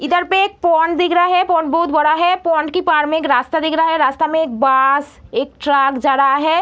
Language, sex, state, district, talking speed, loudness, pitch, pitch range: Hindi, female, Bihar, Araria, 260 wpm, -15 LUFS, 320 Hz, 290-350 Hz